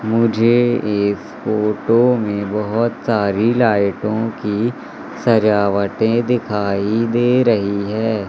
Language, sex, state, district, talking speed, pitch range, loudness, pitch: Hindi, male, Madhya Pradesh, Katni, 95 wpm, 105-115 Hz, -17 LUFS, 110 Hz